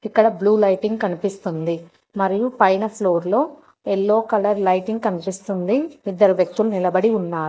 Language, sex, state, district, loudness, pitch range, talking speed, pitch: Telugu, female, Telangana, Hyderabad, -20 LUFS, 185-220 Hz, 120 wpm, 205 Hz